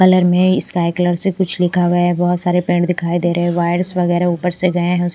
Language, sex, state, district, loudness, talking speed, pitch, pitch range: Hindi, female, Punjab, Pathankot, -16 LUFS, 245 wpm, 175 Hz, 175-180 Hz